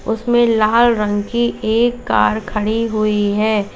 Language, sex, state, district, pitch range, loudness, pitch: Hindi, female, Uttar Pradesh, Lalitpur, 210-235 Hz, -16 LUFS, 220 Hz